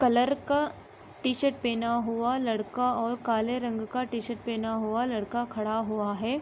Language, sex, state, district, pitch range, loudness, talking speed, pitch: Hindi, female, Uttar Pradesh, Jalaun, 225-250 Hz, -29 LUFS, 160 wpm, 235 Hz